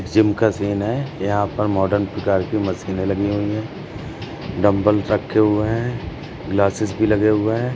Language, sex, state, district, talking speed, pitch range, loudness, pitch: Hindi, male, Uttar Pradesh, Jalaun, 170 wpm, 100-110 Hz, -20 LUFS, 105 Hz